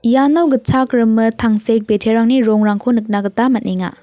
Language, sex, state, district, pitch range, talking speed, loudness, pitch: Garo, female, Meghalaya, West Garo Hills, 215-250 Hz, 135 wpm, -14 LUFS, 230 Hz